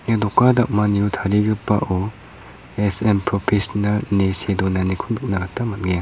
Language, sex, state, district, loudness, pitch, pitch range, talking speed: Garo, male, Meghalaya, South Garo Hills, -20 LUFS, 105 Hz, 95-105 Hz, 120 wpm